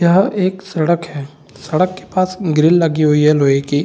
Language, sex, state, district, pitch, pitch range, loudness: Hindi, male, Bihar, Saran, 160 Hz, 150-185 Hz, -15 LUFS